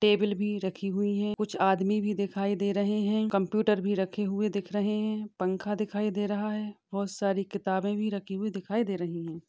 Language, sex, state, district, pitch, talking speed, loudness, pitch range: Hindi, female, Maharashtra, Chandrapur, 205 Hz, 215 wpm, -30 LUFS, 195-210 Hz